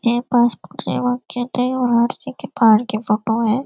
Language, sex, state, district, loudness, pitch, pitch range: Hindi, female, Uttar Pradesh, Varanasi, -18 LUFS, 240 Hz, 225-250 Hz